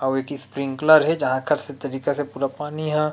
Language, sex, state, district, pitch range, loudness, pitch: Chhattisgarhi, male, Chhattisgarh, Rajnandgaon, 135-150 Hz, -22 LUFS, 145 Hz